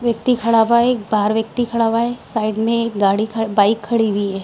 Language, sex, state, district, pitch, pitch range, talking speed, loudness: Hindi, female, Bihar, Samastipur, 225 Hz, 215-235 Hz, 245 wpm, -17 LUFS